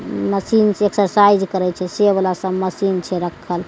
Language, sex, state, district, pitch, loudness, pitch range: Maithili, female, Bihar, Begusarai, 190 Hz, -17 LUFS, 180-205 Hz